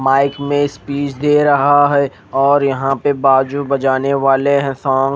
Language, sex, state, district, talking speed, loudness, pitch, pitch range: Hindi, male, Odisha, Khordha, 165 wpm, -15 LUFS, 140 Hz, 135-145 Hz